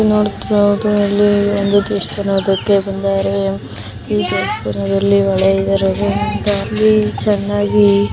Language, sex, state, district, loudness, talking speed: Kannada, female, Karnataka, Mysore, -15 LUFS, 60 wpm